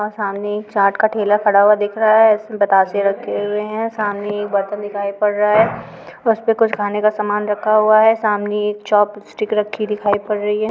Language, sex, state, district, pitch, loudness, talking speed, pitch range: Hindi, female, Uttar Pradesh, Budaun, 210 Hz, -17 LUFS, 220 wpm, 205-215 Hz